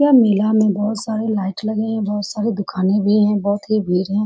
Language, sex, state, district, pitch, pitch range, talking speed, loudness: Hindi, female, Bihar, Saran, 210 Hz, 200-215 Hz, 255 wpm, -18 LUFS